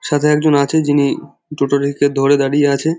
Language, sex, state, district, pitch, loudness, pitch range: Bengali, male, West Bengal, Jhargram, 145 Hz, -15 LUFS, 140-150 Hz